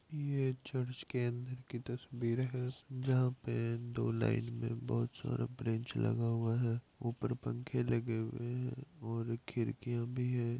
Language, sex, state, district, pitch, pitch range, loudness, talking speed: Hindi, male, Bihar, Madhepura, 120 Hz, 115-125 Hz, -38 LUFS, 155 wpm